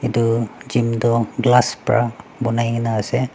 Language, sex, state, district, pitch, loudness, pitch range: Nagamese, male, Nagaland, Dimapur, 115 Hz, -19 LUFS, 115-125 Hz